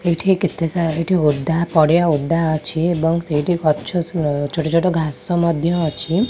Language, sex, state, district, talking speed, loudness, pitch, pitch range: Odia, female, Odisha, Khordha, 150 wpm, -18 LUFS, 165 Hz, 155-175 Hz